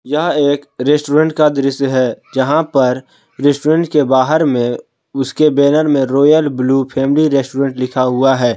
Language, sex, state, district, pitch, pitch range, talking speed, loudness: Hindi, male, Jharkhand, Palamu, 140 Hz, 130-150 Hz, 155 wpm, -14 LUFS